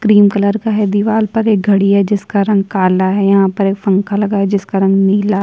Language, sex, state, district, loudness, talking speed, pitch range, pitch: Hindi, female, Chhattisgarh, Sukma, -13 LUFS, 265 wpm, 195-205 Hz, 200 Hz